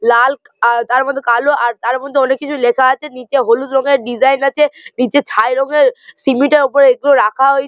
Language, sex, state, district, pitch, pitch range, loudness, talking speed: Bengali, male, West Bengal, Malda, 270 Hz, 250-280 Hz, -13 LUFS, 210 wpm